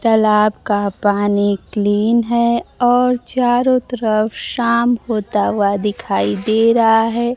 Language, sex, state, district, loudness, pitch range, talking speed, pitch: Hindi, female, Bihar, Kaimur, -16 LUFS, 205-235 Hz, 120 wpm, 225 Hz